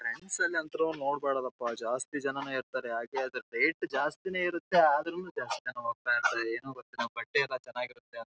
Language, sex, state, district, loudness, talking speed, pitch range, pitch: Kannada, male, Karnataka, Raichur, -32 LUFS, 150 wpm, 125-180 Hz, 135 Hz